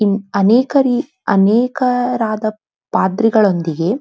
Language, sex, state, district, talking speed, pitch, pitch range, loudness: Kannada, female, Karnataka, Dharwad, 75 wpm, 220 Hz, 200-250 Hz, -15 LUFS